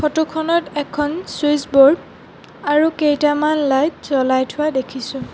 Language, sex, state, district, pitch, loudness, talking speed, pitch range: Assamese, female, Assam, Sonitpur, 295 Hz, -17 LUFS, 125 wpm, 275-305 Hz